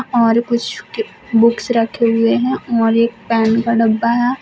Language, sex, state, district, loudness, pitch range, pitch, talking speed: Hindi, female, Uttar Pradesh, Shamli, -15 LUFS, 225-235 Hz, 230 Hz, 165 wpm